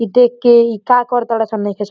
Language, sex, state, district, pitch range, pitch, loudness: Bhojpuri, male, Uttar Pradesh, Deoria, 220-245 Hz, 235 Hz, -13 LUFS